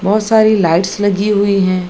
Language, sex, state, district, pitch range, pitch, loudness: Hindi, female, Bihar, Gaya, 185-210 Hz, 205 Hz, -13 LUFS